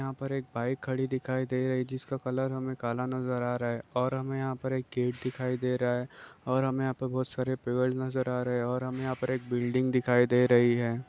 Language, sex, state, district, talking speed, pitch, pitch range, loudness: Hindi, male, Chhattisgarh, Raigarh, 255 wpm, 130 Hz, 125-130 Hz, -30 LUFS